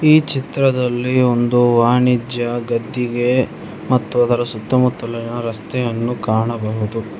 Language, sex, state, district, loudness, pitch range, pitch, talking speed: Kannada, male, Karnataka, Bangalore, -17 LUFS, 115-125 Hz, 120 Hz, 90 wpm